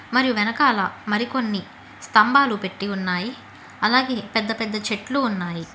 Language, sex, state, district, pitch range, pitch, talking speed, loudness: Telugu, female, Telangana, Hyderabad, 200-250 Hz, 220 Hz, 115 wpm, -21 LUFS